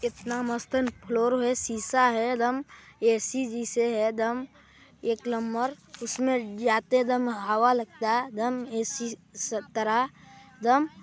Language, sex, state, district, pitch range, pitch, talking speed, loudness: Hindi, male, Chhattisgarh, Balrampur, 225-250 Hz, 235 Hz, 125 wpm, -27 LUFS